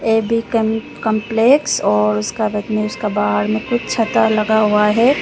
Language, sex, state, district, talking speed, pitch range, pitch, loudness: Hindi, female, Arunachal Pradesh, Lower Dibang Valley, 125 wpm, 210-225 Hz, 220 Hz, -16 LUFS